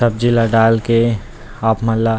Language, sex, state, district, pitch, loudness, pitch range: Chhattisgarhi, male, Chhattisgarh, Rajnandgaon, 115 Hz, -15 LUFS, 110-115 Hz